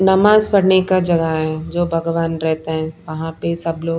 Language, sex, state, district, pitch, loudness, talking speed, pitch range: Hindi, female, Punjab, Pathankot, 165 Hz, -17 LUFS, 195 wpm, 160-185 Hz